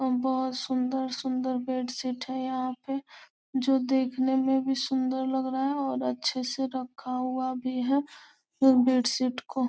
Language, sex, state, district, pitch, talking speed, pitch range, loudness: Hindi, female, Bihar, Gopalganj, 260 Hz, 160 wpm, 255-265 Hz, -28 LUFS